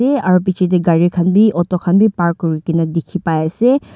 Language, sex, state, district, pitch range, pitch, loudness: Nagamese, female, Nagaland, Dimapur, 165-190 Hz, 180 Hz, -15 LUFS